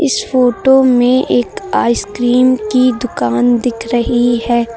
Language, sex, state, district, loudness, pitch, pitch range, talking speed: Hindi, female, Uttar Pradesh, Lucknow, -13 LUFS, 245 Hz, 235-255 Hz, 125 wpm